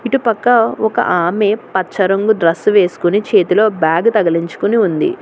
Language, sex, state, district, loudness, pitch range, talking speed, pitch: Telugu, female, Telangana, Hyderabad, -14 LUFS, 180-225 Hz, 140 wpm, 210 Hz